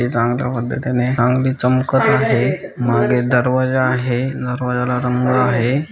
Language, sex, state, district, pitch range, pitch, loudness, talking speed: Marathi, male, Maharashtra, Aurangabad, 125-130 Hz, 125 Hz, -17 LUFS, 80 wpm